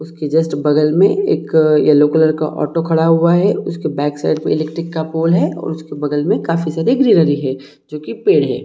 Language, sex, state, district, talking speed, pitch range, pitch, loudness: Hindi, male, Jharkhand, Jamtara, 230 wpm, 150-165 Hz, 160 Hz, -15 LUFS